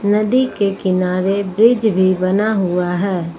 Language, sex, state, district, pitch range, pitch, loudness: Hindi, female, Uttar Pradesh, Lucknow, 185-210 Hz, 195 Hz, -16 LUFS